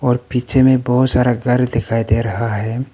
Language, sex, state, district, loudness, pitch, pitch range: Hindi, male, Arunachal Pradesh, Papum Pare, -16 LUFS, 125 Hz, 115-125 Hz